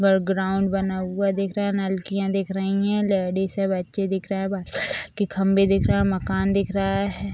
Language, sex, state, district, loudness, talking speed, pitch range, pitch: Hindi, female, Bihar, Madhepura, -23 LUFS, 245 wpm, 190-195 Hz, 195 Hz